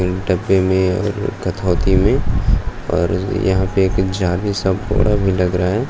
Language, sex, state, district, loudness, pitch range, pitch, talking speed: Hindi, male, Maharashtra, Aurangabad, -17 LUFS, 90-100 Hz, 95 Hz, 140 wpm